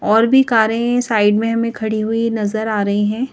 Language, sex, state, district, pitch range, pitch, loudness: Hindi, female, Madhya Pradesh, Bhopal, 215-230 Hz, 220 Hz, -16 LUFS